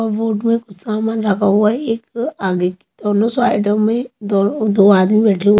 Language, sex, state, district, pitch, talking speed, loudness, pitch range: Hindi, female, Maharashtra, Mumbai Suburban, 215 Hz, 180 wpm, -16 LUFS, 200-225 Hz